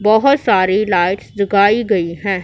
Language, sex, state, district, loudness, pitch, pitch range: Hindi, female, Punjab, Pathankot, -14 LUFS, 200 Hz, 185-215 Hz